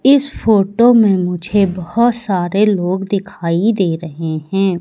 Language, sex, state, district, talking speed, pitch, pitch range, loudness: Hindi, female, Madhya Pradesh, Katni, 135 wpm, 195 Hz, 180-215 Hz, -15 LUFS